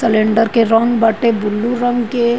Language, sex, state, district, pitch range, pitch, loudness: Bhojpuri, female, Uttar Pradesh, Ghazipur, 225-240 Hz, 230 Hz, -14 LUFS